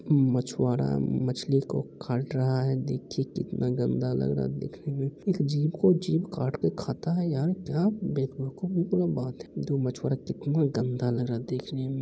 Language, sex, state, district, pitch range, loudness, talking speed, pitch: Angika, male, Bihar, Begusarai, 125-165 Hz, -29 LUFS, 190 wpm, 135 Hz